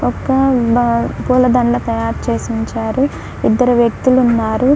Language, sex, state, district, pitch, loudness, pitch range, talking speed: Telugu, female, Andhra Pradesh, Krishna, 240 Hz, -15 LUFS, 225-255 Hz, 90 wpm